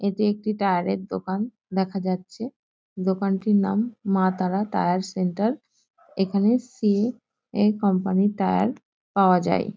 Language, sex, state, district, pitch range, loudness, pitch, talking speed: Bengali, female, West Bengal, North 24 Parganas, 190-215 Hz, -24 LUFS, 200 Hz, 140 wpm